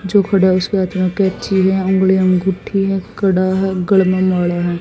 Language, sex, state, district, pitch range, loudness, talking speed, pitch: Hindi, female, Haryana, Jhajjar, 185-195 Hz, -15 LUFS, 225 wpm, 190 Hz